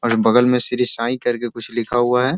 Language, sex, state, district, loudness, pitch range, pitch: Hindi, male, Bihar, Sitamarhi, -18 LUFS, 115-125 Hz, 120 Hz